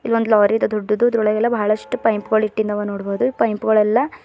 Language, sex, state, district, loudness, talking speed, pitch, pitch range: Kannada, female, Karnataka, Bidar, -18 LUFS, 240 wpm, 215 Hz, 210-230 Hz